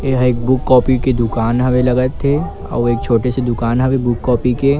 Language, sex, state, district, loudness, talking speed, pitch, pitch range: Chhattisgarhi, male, Chhattisgarh, Kabirdham, -15 LUFS, 225 wpm, 125 Hz, 120-130 Hz